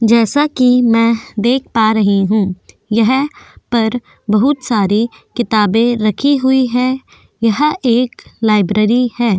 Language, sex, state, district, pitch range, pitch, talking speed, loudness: Hindi, female, Goa, North and South Goa, 215-255 Hz, 235 Hz, 110 wpm, -14 LUFS